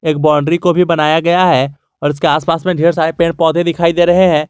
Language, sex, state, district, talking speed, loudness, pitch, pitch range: Hindi, male, Jharkhand, Garhwa, 255 wpm, -12 LUFS, 165 Hz, 155-175 Hz